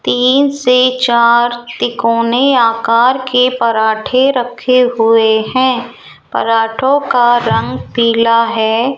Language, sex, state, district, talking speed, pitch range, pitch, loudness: Hindi, female, Rajasthan, Jaipur, 100 wpm, 230-255 Hz, 240 Hz, -12 LUFS